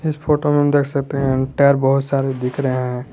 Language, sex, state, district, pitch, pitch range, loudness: Hindi, male, Jharkhand, Garhwa, 140 Hz, 130-145 Hz, -18 LUFS